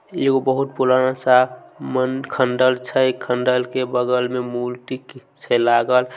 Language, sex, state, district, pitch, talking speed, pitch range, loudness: Maithili, male, Bihar, Samastipur, 130 Hz, 165 wpm, 125-130 Hz, -19 LUFS